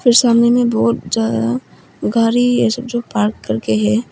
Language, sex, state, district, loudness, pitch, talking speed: Hindi, female, Arunachal Pradesh, Papum Pare, -16 LUFS, 220 Hz, 130 wpm